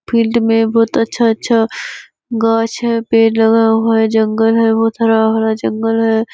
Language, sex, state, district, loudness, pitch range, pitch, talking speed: Hindi, female, Bihar, Kishanganj, -13 LUFS, 225-230 Hz, 225 Hz, 150 wpm